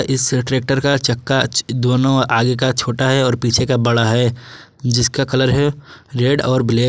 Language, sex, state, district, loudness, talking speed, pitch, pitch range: Hindi, male, Jharkhand, Garhwa, -16 LUFS, 185 wpm, 130 Hz, 120-135 Hz